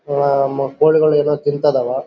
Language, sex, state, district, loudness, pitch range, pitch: Kannada, male, Karnataka, Bellary, -15 LUFS, 135-150 Hz, 145 Hz